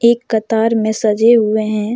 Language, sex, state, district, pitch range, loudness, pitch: Hindi, female, Jharkhand, Deoghar, 215-230 Hz, -14 LUFS, 220 Hz